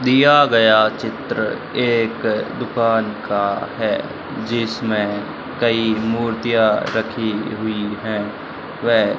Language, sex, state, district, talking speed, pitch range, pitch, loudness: Hindi, male, Rajasthan, Bikaner, 100 wpm, 105-115 Hz, 110 Hz, -19 LUFS